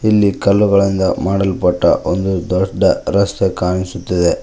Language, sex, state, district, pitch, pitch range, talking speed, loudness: Kannada, male, Karnataka, Koppal, 95 Hz, 90-100 Hz, 95 wpm, -15 LUFS